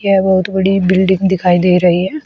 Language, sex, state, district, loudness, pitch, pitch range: Hindi, female, Uttar Pradesh, Shamli, -12 LUFS, 190 Hz, 180-190 Hz